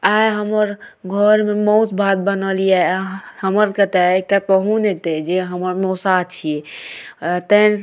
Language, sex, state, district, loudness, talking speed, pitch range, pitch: Maithili, female, Bihar, Madhepura, -17 LUFS, 130 wpm, 185-210 Hz, 195 Hz